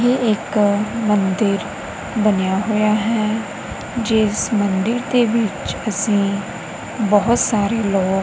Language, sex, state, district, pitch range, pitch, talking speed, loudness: Punjabi, female, Punjab, Kapurthala, 200-225 Hz, 210 Hz, 100 wpm, -18 LUFS